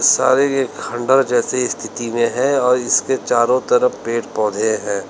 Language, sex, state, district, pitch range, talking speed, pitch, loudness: Hindi, male, Uttar Pradesh, Lalitpur, 115-130 Hz, 165 wpm, 125 Hz, -17 LUFS